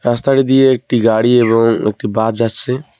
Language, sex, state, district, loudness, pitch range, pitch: Bengali, male, West Bengal, Cooch Behar, -13 LUFS, 115-130 Hz, 120 Hz